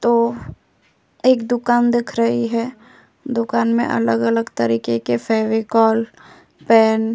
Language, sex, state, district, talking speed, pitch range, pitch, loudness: Hindi, female, Uttar Pradesh, Etah, 115 wpm, 220-240 Hz, 230 Hz, -18 LUFS